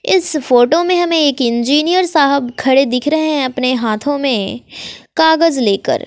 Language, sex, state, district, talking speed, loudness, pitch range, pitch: Hindi, female, Bihar, West Champaran, 160 wpm, -14 LUFS, 250-320 Hz, 280 Hz